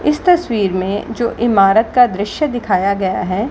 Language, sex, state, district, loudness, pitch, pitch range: Hindi, female, Bihar, Gaya, -15 LUFS, 220 Hz, 195-245 Hz